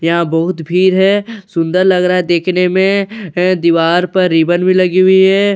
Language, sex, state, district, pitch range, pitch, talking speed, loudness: Hindi, male, Bihar, Katihar, 175-190 Hz, 185 Hz, 215 wpm, -12 LUFS